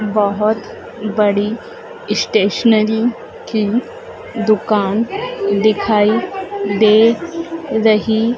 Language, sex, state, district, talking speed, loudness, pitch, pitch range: Hindi, female, Madhya Pradesh, Dhar, 55 wpm, -16 LUFS, 220 Hz, 215-245 Hz